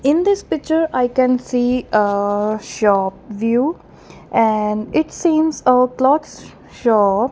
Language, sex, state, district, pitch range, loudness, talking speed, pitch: English, female, Punjab, Kapurthala, 215-295 Hz, -17 LUFS, 125 wpm, 250 Hz